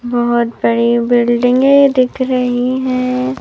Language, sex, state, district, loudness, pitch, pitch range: Hindi, female, Madhya Pradesh, Bhopal, -13 LUFS, 250 Hz, 240-255 Hz